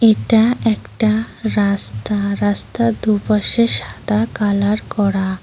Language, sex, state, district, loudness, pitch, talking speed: Bengali, female, West Bengal, Cooch Behar, -16 LUFS, 200 Hz, 100 wpm